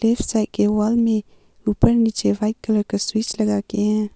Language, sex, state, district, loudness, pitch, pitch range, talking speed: Hindi, female, Arunachal Pradesh, Papum Pare, -20 LUFS, 210 Hz, 200-220 Hz, 200 wpm